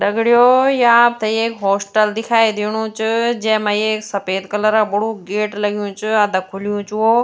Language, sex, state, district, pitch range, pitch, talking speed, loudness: Garhwali, female, Uttarakhand, Tehri Garhwal, 205-225 Hz, 215 Hz, 180 wpm, -16 LUFS